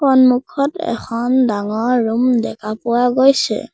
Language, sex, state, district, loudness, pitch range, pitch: Assamese, male, Assam, Sonitpur, -16 LUFS, 230-260 Hz, 245 Hz